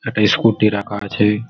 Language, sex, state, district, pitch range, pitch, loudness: Bengali, male, West Bengal, Malda, 105-115 Hz, 105 Hz, -17 LUFS